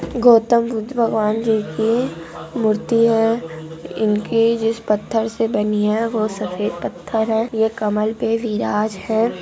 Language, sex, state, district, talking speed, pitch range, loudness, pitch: Hindi, female, Andhra Pradesh, Anantapur, 140 wpm, 215-230 Hz, -19 LUFS, 220 Hz